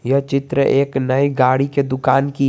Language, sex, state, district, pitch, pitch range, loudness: Hindi, male, Jharkhand, Garhwa, 135 Hz, 130-140 Hz, -17 LUFS